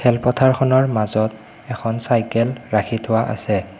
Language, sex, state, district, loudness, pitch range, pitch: Assamese, male, Assam, Kamrup Metropolitan, -19 LUFS, 110-125 Hz, 115 Hz